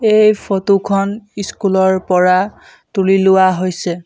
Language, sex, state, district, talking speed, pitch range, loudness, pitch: Assamese, male, Assam, Sonitpur, 135 wpm, 185-200 Hz, -14 LUFS, 195 Hz